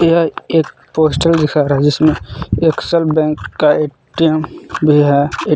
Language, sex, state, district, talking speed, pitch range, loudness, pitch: Hindi, male, Jharkhand, Palamu, 130 wpm, 150-160 Hz, -14 LUFS, 155 Hz